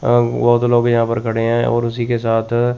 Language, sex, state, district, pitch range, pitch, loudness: Hindi, male, Chandigarh, Chandigarh, 115-120 Hz, 120 Hz, -16 LUFS